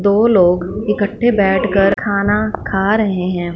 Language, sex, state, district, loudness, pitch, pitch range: Hindi, female, Punjab, Fazilka, -15 LUFS, 200 Hz, 190-210 Hz